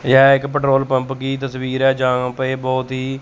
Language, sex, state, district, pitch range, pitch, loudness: Hindi, male, Chandigarh, Chandigarh, 130-135 Hz, 130 Hz, -17 LUFS